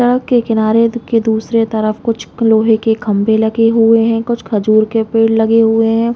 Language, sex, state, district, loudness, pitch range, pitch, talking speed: Hindi, female, Chhattisgarh, Raigarh, -13 LUFS, 220-230 Hz, 225 Hz, 195 wpm